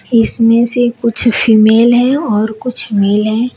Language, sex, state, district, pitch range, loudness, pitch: Hindi, female, Uttar Pradesh, Shamli, 220-240 Hz, -11 LUFS, 230 Hz